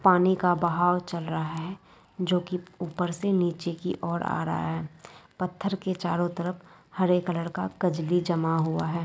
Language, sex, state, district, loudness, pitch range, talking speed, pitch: Hindi, female, West Bengal, Jalpaiguri, -28 LUFS, 165-180 Hz, 180 wpm, 175 Hz